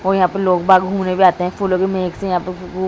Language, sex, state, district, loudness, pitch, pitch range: Hindi, female, Bihar, Saran, -16 LUFS, 185 Hz, 180-190 Hz